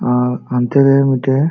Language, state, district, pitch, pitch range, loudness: Santali, Jharkhand, Sahebganj, 135 Hz, 125-135 Hz, -14 LUFS